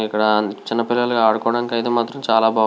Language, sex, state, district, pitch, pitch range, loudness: Telugu, male, Andhra Pradesh, Visakhapatnam, 115 Hz, 110-120 Hz, -19 LUFS